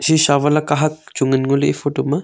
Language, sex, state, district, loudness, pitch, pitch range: Wancho, male, Arunachal Pradesh, Longding, -17 LUFS, 145 Hz, 140-155 Hz